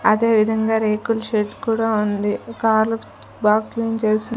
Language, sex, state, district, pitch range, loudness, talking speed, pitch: Telugu, female, Andhra Pradesh, Sri Satya Sai, 215-225 Hz, -20 LUFS, 110 wpm, 220 Hz